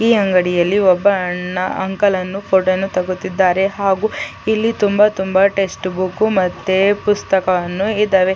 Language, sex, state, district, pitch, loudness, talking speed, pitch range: Kannada, female, Karnataka, Chamarajanagar, 190 Hz, -16 LUFS, 115 wpm, 185-205 Hz